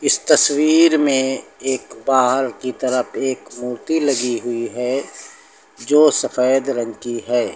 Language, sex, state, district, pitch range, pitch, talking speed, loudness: Hindi, male, Uttar Pradesh, Lucknow, 120-135 Hz, 130 Hz, 135 wpm, -18 LUFS